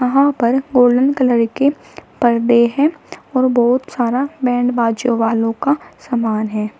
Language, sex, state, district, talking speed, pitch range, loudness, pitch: Hindi, female, Uttar Pradesh, Shamli, 140 wpm, 235-265 Hz, -16 LUFS, 245 Hz